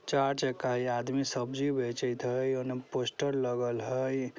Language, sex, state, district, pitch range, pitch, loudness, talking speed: Maithili, female, Bihar, Vaishali, 125-135 Hz, 130 Hz, -32 LUFS, 165 wpm